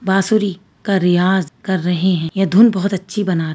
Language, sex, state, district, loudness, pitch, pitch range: Hindi, female, Uttar Pradesh, Varanasi, -16 LUFS, 190 Hz, 180-195 Hz